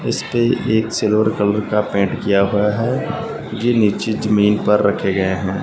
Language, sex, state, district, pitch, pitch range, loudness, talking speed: Hindi, male, Punjab, Fazilka, 105 Hz, 100-110 Hz, -17 LUFS, 170 wpm